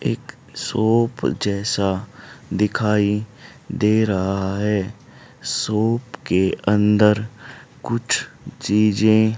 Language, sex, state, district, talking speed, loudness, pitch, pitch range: Hindi, male, Haryana, Charkhi Dadri, 75 wpm, -20 LUFS, 105 Hz, 100-115 Hz